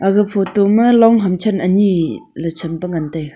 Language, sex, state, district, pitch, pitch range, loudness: Wancho, female, Arunachal Pradesh, Longding, 195 Hz, 165-205 Hz, -15 LUFS